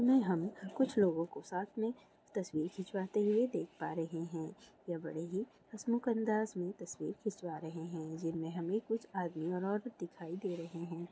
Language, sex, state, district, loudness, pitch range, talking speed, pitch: Maithili, female, Bihar, Saharsa, -38 LUFS, 165-215 Hz, 185 wpm, 180 Hz